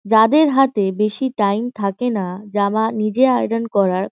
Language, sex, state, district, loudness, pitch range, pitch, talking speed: Bengali, female, West Bengal, Kolkata, -18 LUFS, 200-245 Hz, 215 Hz, 160 wpm